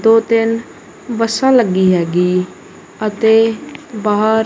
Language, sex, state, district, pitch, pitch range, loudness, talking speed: Punjabi, female, Punjab, Kapurthala, 225 Hz, 210-230 Hz, -14 LUFS, 95 wpm